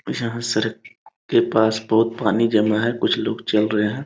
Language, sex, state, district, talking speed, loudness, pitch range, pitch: Hindi, male, Bihar, Sitamarhi, 190 wpm, -20 LUFS, 110-115 Hz, 110 Hz